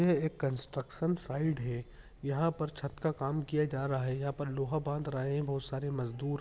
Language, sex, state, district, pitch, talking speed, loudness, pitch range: Hindi, male, Bihar, Jahanabad, 140 Hz, 215 wpm, -34 LUFS, 135-150 Hz